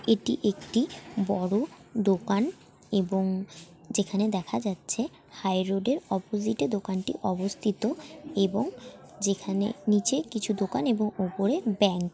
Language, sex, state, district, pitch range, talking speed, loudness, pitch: Bengali, female, West Bengal, Dakshin Dinajpur, 195-225 Hz, 110 wpm, -28 LUFS, 205 Hz